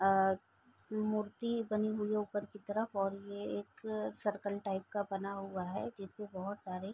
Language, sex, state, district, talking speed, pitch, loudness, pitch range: Hindi, female, Bihar, East Champaran, 180 wpm, 205 Hz, -38 LUFS, 195-215 Hz